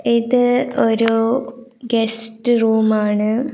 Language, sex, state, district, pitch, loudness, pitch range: Malayalam, female, Kerala, Kasaragod, 230 Hz, -17 LUFS, 225-245 Hz